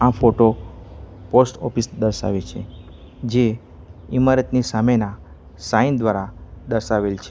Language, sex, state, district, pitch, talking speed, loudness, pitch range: Gujarati, male, Gujarat, Valsad, 110 Hz, 100 wpm, -20 LUFS, 90-120 Hz